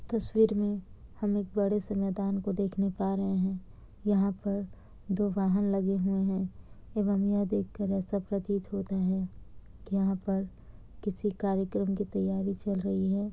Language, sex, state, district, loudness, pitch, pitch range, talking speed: Hindi, female, Bihar, Kishanganj, -31 LUFS, 195 Hz, 195-205 Hz, 160 wpm